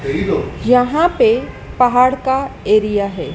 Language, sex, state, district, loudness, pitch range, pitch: Hindi, male, Madhya Pradesh, Dhar, -15 LUFS, 215-275 Hz, 250 Hz